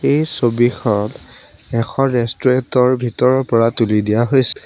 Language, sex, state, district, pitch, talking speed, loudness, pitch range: Assamese, male, Assam, Sonitpur, 120 Hz, 115 wpm, -16 LUFS, 115-130 Hz